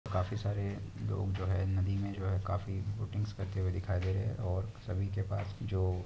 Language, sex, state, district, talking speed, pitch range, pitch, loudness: Hindi, male, Jharkhand, Jamtara, 235 wpm, 95-100 Hz, 100 Hz, -36 LUFS